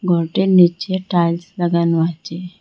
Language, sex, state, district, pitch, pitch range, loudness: Bengali, female, Assam, Hailakandi, 175 Hz, 170-185 Hz, -17 LUFS